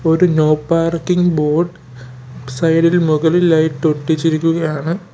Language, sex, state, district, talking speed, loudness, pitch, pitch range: Malayalam, male, Kerala, Kollam, 95 wpm, -15 LUFS, 160 Hz, 155-170 Hz